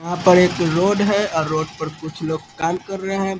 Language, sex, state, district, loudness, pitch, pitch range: Hindi, male, Bihar, East Champaran, -19 LUFS, 175 Hz, 160-195 Hz